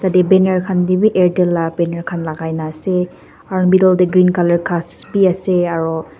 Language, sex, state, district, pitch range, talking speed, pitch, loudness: Nagamese, female, Nagaland, Dimapur, 170-185 Hz, 195 wpm, 180 Hz, -15 LUFS